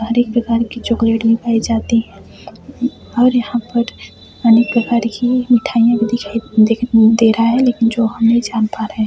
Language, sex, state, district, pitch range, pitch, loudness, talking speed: Chhattisgarhi, female, Chhattisgarh, Sarguja, 225-240 Hz, 230 Hz, -15 LUFS, 200 wpm